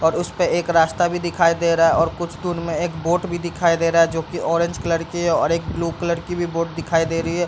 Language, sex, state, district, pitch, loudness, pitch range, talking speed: Hindi, male, Bihar, Bhagalpur, 170 Hz, -20 LUFS, 165-175 Hz, 295 wpm